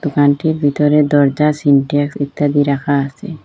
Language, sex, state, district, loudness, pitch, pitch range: Bengali, female, Assam, Hailakandi, -14 LUFS, 145 Hz, 140-150 Hz